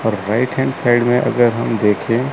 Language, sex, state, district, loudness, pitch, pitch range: Hindi, male, Chandigarh, Chandigarh, -16 LUFS, 120 Hz, 115-125 Hz